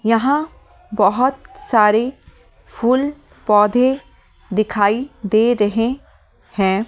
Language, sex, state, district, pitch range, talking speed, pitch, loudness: Hindi, female, Delhi, New Delhi, 210-260 Hz, 80 wpm, 230 Hz, -17 LUFS